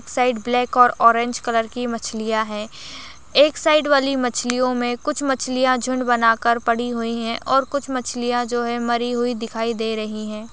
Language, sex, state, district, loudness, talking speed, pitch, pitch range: Hindi, female, Rajasthan, Churu, -20 LUFS, 175 wpm, 240 Hz, 230-255 Hz